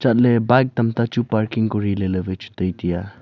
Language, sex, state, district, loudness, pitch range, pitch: Wancho, male, Arunachal Pradesh, Longding, -20 LUFS, 95-120 Hz, 110 Hz